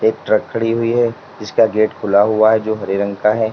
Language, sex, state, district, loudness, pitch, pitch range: Hindi, male, Uttar Pradesh, Lalitpur, -16 LUFS, 110 Hz, 105-115 Hz